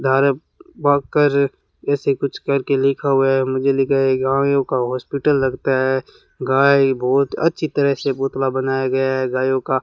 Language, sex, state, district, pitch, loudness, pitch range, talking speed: Hindi, male, Rajasthan, Bikaner, 135 Hz, -18 LUFS, 130-140 Hz, 175 wpm